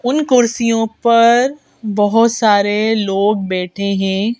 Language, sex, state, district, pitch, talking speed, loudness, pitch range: Hindi, female, Madhya Pradesh, Bhopal, 220 Hz, 110 wpm, -14 LUFS, 200-235 Hz